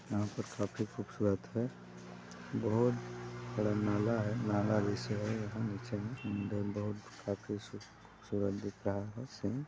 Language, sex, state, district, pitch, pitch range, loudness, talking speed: Hindi, male, Chhattisgarh, Balrampur, 105 Hz, 100-110 Hz, -37 LUFS, 155 wpm